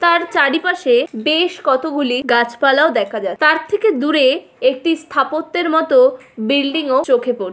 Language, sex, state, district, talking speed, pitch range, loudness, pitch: Bengali, female, West Bengal, Malda, 145 wpm, 265-340 Hz, -15 LUFS, 305 Hz